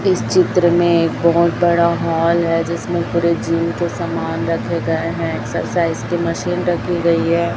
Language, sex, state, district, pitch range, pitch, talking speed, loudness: Hindi, female, Chhattisgarh, Raipur, 170-175 Hz, 170 Hz, 175 wpm, -17 LUFS